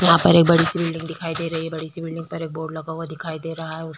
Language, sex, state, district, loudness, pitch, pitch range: Hindi, female, Bihar, Vaishali, -22 LUFS, 165 Hz, 160-165 Hz